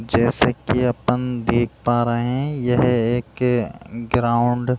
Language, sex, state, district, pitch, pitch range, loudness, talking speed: Hindi, male, Bihar, Jahanabad, 120 Hz, 120-125 Hz, -20 LUFS, 140 wpm